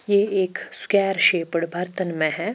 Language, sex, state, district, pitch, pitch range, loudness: Hindi, female, Chandigarh, Chandigarh, 185 Hz, 170-200 Hz, -19 LUFS